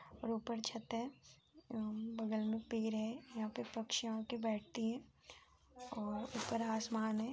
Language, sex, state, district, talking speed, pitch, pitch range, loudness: Hindi, female, Uttar Pradesh, Jyotiba Phule Nagar, 145 wpm, 225 Hz, 220-235 Hz, -42 LUFS